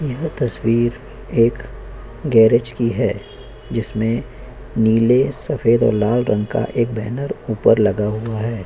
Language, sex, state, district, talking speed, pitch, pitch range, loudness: Hindi, male, Chhattisgarh, Korba, 130 wpm, 115 Hz, 110-125 Hz, -18 LUFS